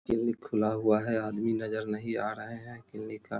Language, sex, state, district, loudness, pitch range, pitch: Hindi, male, Bihar, Vaishali, -32 LUFS, 110-115 Hz, 110 Hz